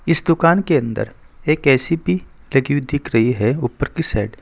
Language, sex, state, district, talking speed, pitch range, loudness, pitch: Hindi, male, Uttar Pradesh, Saharanpur, 215 wpm, 125-165 Hz, -18 LUFS, 145 Hz